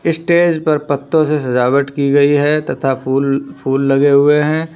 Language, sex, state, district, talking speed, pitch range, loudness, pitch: Hindi, male, Uttar Pradesh, Lalitpur, 175 wpm, 135-155 Hz, -14 LUFS, 145 Hz